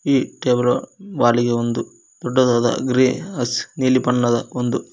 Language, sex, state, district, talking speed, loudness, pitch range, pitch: Kannada, male, Karnataka, Koppal, 120 wpm, -19 LUFS, 120-130 Hz, 125 Hz